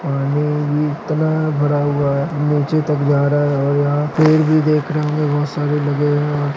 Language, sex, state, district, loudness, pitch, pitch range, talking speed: Hindi, male, Maharashtra, Nagpur, -17 LUFS, 145 Hz, 145-150 Hz, 200 wpm